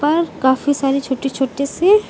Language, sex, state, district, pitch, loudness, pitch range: Hindi, female, Uttar Pradesh, Lucknow, 280 Hz, -17 LUFS, 270-305 Hz